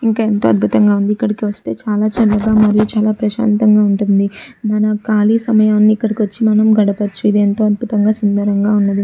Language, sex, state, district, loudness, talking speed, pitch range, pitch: Telugu, female, Andhra Pradesh, Chittoor, -14 LUFS, 145 wpm, 205-215 Hz, 210 Hz